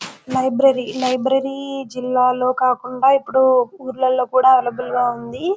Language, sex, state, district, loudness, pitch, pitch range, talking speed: Telugu, female, Telangana, Karimnagar, -18 LUFS, 255 Hz, 250-265 Hz, 110 wpm